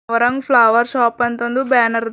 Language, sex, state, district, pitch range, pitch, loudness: Kannada, female, Karnataka, Bidar, 230-250 Hz, 240 Hz, -15 LUFS